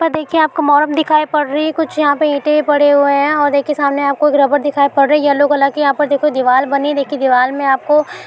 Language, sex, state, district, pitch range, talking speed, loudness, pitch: Hindi, female, Uttar Pradesh, Budaun, 280-300 Hz, 275 wpm, -13 LUFS, 290 Hz